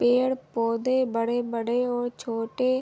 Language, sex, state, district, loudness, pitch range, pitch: Hindi, female, Chhattisgarh, Bilaspur, -26 LUFS, 230-255 Hz, 245 Hz